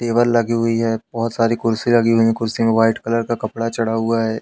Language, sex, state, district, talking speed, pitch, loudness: Hindi, male, Madhya Pradesh, Katni, 255 wpm, 115 Hz, -18 LUFS